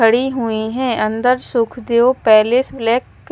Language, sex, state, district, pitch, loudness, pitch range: Hindi, female, Maharashtra, Mumbai Suburban, 240 Hz, -16 LUFS, 225-255 Hz